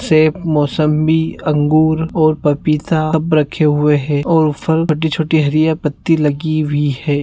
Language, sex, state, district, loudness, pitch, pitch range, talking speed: Hindi, male, Rajasthan, Nagaur, -15 LUFS, 155 Hz, 150-160 Hz, 150 wpm